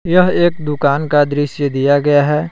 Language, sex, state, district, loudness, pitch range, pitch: Hindi, male, Jharkhand, Palamu, -14 LUFS, 145-165 Hz, 150 Hz